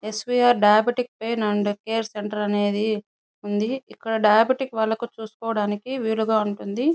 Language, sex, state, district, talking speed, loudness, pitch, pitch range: Telugu, female, Andhra Pradesh, Chittoor, 140 wpm, -23 LUFS, 220 Hz, 210-230 Hz